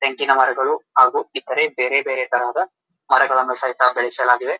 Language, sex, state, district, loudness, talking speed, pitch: Kannada, male, Karnataka, Dharwad, -18 LUFS, 130 wpm, 175 Hz